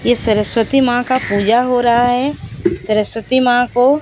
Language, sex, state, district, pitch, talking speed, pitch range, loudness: Hindi, female, Odisha, Sambalpur, 245 Hz, 165 wpm, 225-255 Hz, -15 LUFS